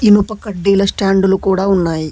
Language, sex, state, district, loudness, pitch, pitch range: Telugu, male, Telangana, Hyderabad, -14 LUFS, 195 Hz, 190-205 Hz